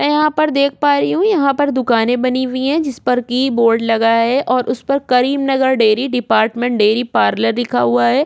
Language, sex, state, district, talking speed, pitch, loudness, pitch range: Hindi, female, Chhattisgarh, Korba, 210 wpm, 250 Hz, -15 LUFS, 230-275 Hz